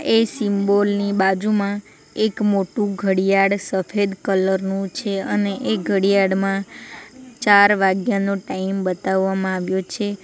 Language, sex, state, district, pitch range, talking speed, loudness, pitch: Gujarati, female, Gujarat, Valsad, 190-205 Hz, 115 wpm, -19 LUFS, 200 Hz